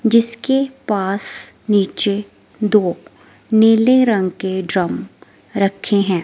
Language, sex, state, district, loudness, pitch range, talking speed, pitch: Hindi, female, Himachal Pradesh, Shimla, -17 LUFS, 195-225 Hz, 95 wpm, 205 Hz